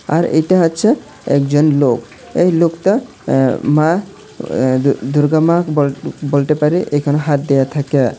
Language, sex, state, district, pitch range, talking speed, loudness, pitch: Bengali, male, Tripura, Unakoti, 140-170 Hz, 130 wpm, -15 LUFS, 150 Hz